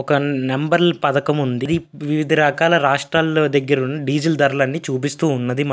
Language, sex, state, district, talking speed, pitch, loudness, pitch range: Telugu, male, Andhra Pradesh, Visakhapatnam, 135 wpm, 145 Hz, -18 LUFS, 140-160 Hz